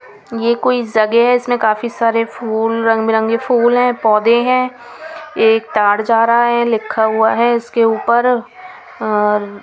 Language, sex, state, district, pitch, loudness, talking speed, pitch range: Hindi, female, Punjab, Kapurthala, 230 Hz, -14 LUFS, 155 wpm, 220-240 Hz